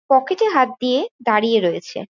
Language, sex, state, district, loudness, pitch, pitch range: Bengali, female, West Bengal, Jhargram, -18 LUFS, 255 Hz, 225-330 Hz